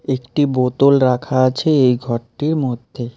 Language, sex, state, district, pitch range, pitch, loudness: Bengali, male, West Bengal, Alipurduar, 125-140 Hz, 130 Hz, -17 LUFS